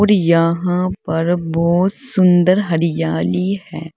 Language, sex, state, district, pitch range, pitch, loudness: Hindi, female, Uttar Pradesh, Saharanpur, 165-185 Hz, 175 Hz, -16 LUFS